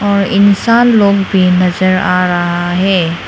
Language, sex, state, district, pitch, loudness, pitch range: Hindi, female, Arunachal Pradesh, Lower Dibang Valley, 185 Hz, -11 LUFS, 180-200 Hz